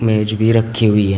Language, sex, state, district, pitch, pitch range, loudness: Hindi, male, Uttar Pradesh, Shamli, 110 Hz, 105-115 Hz, -15 LUFS